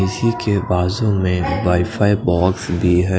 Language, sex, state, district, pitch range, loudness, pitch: Hindi, male, Odisha, Khordha, 90-105 Hz, -17 LUFS, 95 Hz